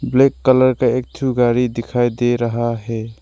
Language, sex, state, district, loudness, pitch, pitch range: Hindi, male, Arunachal Pradesh, Lower Dibang Valley, -17 LUFS, 120 Hz, 115-130 Hz